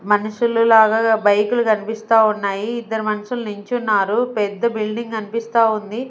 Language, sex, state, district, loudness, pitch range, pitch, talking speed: Telugu, female, Andhra Pradesh, Sri Satya Sai, -18 LUFS, 210-230 Hz, 220 Hz, 120 wpm